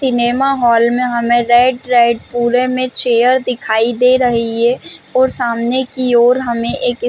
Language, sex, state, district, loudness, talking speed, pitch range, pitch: Hindi, female, Chhattisgarh, Bastar, -13 LUFS, 160 wpm, 235-255 Hz, 245 Hz